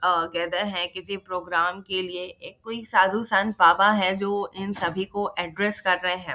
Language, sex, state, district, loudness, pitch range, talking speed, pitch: Hindi, female, Bihar, Jahanabad, -24 LUFS, 180-200 Hz, 210 wpm, 185 Hz